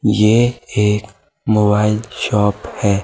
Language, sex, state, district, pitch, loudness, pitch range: Hindi, male, Himachal Pradesh, Shimla, 105 Hz, -16 LUFS, 105-110 Hz